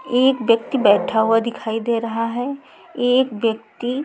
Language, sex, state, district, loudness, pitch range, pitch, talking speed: Hindi, female, Chhattisgarh, Raipur, -19 LUFS, 225-260 Hz, 235 Hz, 150 wpm